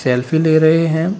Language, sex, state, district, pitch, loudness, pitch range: Hindi, male, Bihar, Saran, 160 Hz, -14 LUFS, 155-165 Hz